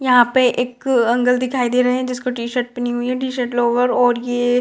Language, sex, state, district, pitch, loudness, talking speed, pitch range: Hindi, female, Bihar, Gopalganj, 245 Hz, -18 LUFS, 235 wpm, 245-250 Hz